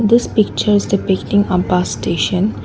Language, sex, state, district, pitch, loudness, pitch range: English, female, Assam, Kamrup Metropolitan, 200 Hz, -16 LUFS, 185-215 Hz